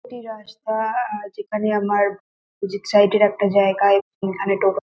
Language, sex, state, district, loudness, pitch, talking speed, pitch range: Bengali, female, West Bengal, North 24 Parganas, -20 LUFS, 205 Hz, 160 wpm, 200-215 Hz